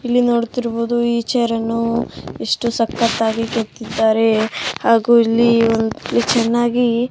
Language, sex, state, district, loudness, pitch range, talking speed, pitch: Kannada, female, Karnataka, Bijapur, -17 LUFS, 225-240 Hz, 100 wpm, 230 Hz